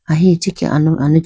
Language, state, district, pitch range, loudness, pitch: Idu Mishmi, Arunachal Pradesh, Lower Dibang Valley, 155-180 Hz, -14 LUFS, 160 Hz